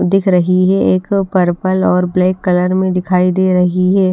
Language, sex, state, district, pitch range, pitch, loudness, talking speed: Hindi, female, Haryana, Rohtak, 180-190 Hz, 185 Hz, -13 LUFS, 190 wpm